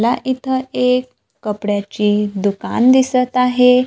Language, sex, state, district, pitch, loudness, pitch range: Marathi, female, Maharashtra, Gondia, 250 Hz, -16 LUFS, 210-255 Hz